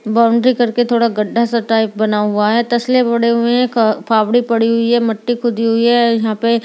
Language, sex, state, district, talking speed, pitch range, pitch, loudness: Hindi, female, Delhi, New Delhi, 225 wpm, 225-240 Hz, 235 Hz, -14 LUFS